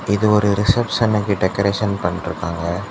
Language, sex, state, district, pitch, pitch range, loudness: Tamil, male, Tamil Nadu, Kanyakumari, 100 Hz, 90-105 Hz, -19 LUFS